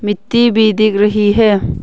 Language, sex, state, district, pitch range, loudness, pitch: Hindi, female, Arunachal Pradesh, Longding, 205-220 Hz, -12 LUFS, 215 Hz